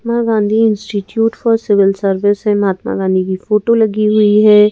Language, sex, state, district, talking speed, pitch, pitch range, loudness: Hindi, female, Madhya Pradesh, Bhopal, 190 wpm, 210 Hz, 200-225 Hz, -13 LUFS